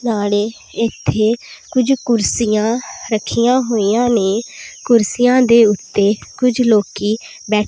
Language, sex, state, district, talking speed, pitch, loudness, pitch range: Punjabi, female, Punjab, Pathankot, 100 wpm, 230 Hz, -16 LUFS, 210-245 Hz